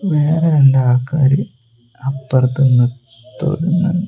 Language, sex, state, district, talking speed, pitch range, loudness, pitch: Malayalam, male, Kerala, Kozhikode, 75 wpm, 125-160 Hz, -15 LUFS, 135 Hz